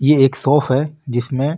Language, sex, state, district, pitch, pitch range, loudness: Marwari, male, Rajasthan, Nagaur, 140 Hz, 130-150 Hz, -17 LUFS